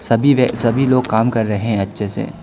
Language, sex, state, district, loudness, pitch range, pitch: Hindi, male, Arunachal Pradesh, Lower Dibang Valley, -16 LUFS, 110-125 Hz, 115 Hz